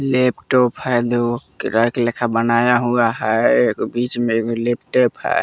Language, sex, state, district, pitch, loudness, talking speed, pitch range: Hindi, male, Bihar, West Champaran, 120 Hz, -18 LUFS, 145 wpm, 115-125 Hz